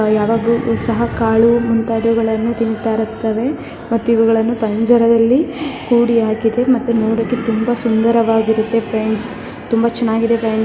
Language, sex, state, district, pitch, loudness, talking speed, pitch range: Kannada, female, Karnataka, Mysore, 230 Hz, -15 LUFS, 120 wpm, 225-235 Hz